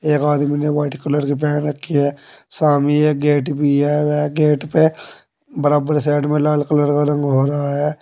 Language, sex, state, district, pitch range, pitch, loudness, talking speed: Hindi, male, Uttar Pradesh, Saharanpur, 145-150 Hz, 145 Hz, -17 LUFS, 185 wpm